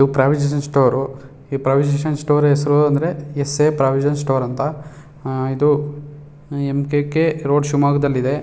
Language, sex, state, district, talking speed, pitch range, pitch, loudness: Kannada, male, Karnataka, Shimoga, 130 wpm, 135-150 Hz, 145 Hz, -18 LUFS